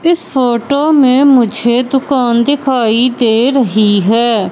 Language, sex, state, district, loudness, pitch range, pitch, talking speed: Hindi, female, Madhya Pradesh, Katni, -11 LUFS, 235-275 Hz, 250 Hz, 120 wpm